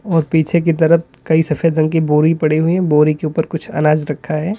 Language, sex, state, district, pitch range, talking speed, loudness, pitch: Hindi, male, Uttar Pradesh, Lalitpur, 155-165 Hz, 235 wpm, -15 LUFS, 160 Hz